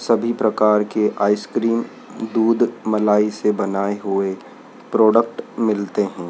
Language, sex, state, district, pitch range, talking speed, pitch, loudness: Hindi, male, Madhya Pradesh, Dhar, 100-115 Hz, 115 wpm, 105 Hz, -19 LUFS